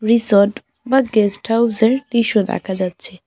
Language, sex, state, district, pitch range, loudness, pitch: Bengali, female, West Bengal, Alipurduar, 200-235 Hz, -16 LUFS, 220 Hz